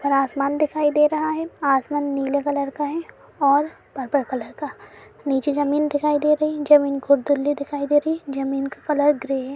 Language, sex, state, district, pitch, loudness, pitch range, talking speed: Hindi, female, Uttar Pradesh, Budaun, 285 Hz, -21 LUFS, 275-295 Hz, 205 wpm